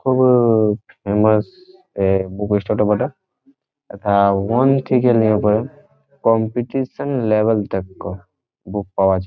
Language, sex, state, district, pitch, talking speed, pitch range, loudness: Bengali, male, West Bengal, Jhargram, 110 Hz, 125 wpm, 100-125 Hz, -18 LUFS